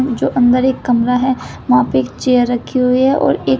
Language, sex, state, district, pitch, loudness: Hindi, female, Uttar Pradesh, Shamli, 245 Hz, -14 LUFS